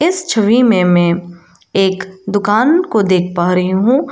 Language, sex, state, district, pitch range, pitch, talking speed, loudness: Hindi, female, Arunachal Pradesh, Lower Dibang Valley, 180-235 Hz, 195 Hz, 160 wpm, -13 LUFS